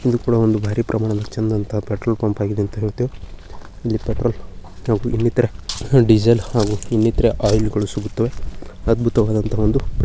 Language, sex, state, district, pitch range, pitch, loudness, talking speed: Kannada, male, Karnataka, Bijapur, 105-115 Hz, 110 Hz, -19 LUFS, 130 wpm